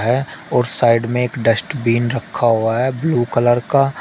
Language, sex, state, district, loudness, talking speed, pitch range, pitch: Hindi, male, Uttar Pradesh, Shamli, -17 LUFS, 180 wpm, 115-130 Hz, 120 Hz